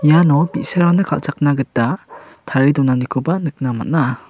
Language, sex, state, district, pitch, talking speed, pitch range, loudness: Garo, male, Meghalaya, West Garo Hills, 145 Hz, 110 wpm, 130-160 Hz, -16 LUFS